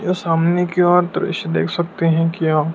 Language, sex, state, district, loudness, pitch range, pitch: Hindi, male, Madhya Pradesh, Dhar, -17 LUFS, 165-175 Hz, 165 Hz